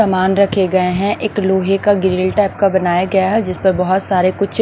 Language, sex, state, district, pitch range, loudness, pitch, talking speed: Hindi, female, Maharashtra, Washim, 185-200 Hz, -15 LUFS, 190 Hz, 235 wpm